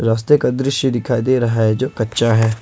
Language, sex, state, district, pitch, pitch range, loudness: Hindi, male, Jharkhand, Ranchi, 115 Hz, 115-130 Hz, -16 LUFS